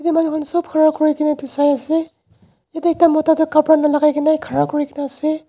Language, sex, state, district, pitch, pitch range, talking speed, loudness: Nagamese, male, Nagaland, Dimapur, 310 Hz, 295-320 Hz, 185 wpm, -17 LUFS